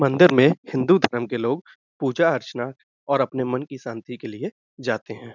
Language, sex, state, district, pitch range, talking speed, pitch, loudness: Hindi, male, Uttar Pradesh, Budaun, 125-140 Hz, 190 wpm, 130 Hz, -22 LUFS